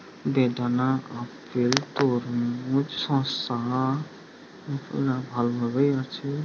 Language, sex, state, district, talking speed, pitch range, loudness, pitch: Bengali, male, West Bengal, Jhargram, 65 wpm, 120-140 Hz, -26 LUFS, 130 Hz